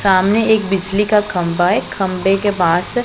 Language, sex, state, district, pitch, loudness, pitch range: Hindi, female, Punjab, Pathankot, 195 Hz, -15 LUFS, 180-210 Hz